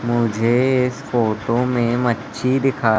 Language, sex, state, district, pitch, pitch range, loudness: Hindi, male, Madhya Pradesh, Katni, 120 Hz, 115-125 Hz, -19 LUFS